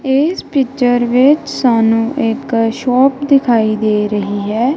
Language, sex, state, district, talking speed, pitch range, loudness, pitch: Punjabi, female, Punjab, Kapurthala, 125 wpm, 225-270 Hz, -13 LUFS, 245 Hz